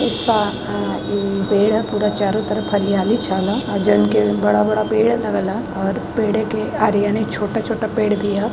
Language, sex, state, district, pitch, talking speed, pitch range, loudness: Hindi, female, Uttar Pradesh, Varanasi, 205 Hz, 185 wpm, 190-220 Hz, -18 LUFS